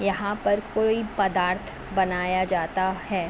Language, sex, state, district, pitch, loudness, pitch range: Hindi, female, Uttar Pradesh, Jalaun, 190 Hz, -25 LUFS, 185-205 Hz